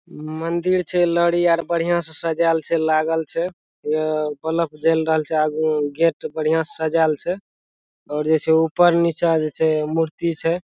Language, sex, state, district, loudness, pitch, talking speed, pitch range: Maithili, male, Bihar, Madhepura, -20 LUFS, 160 Hz, 185 wpm, 155-170 Hz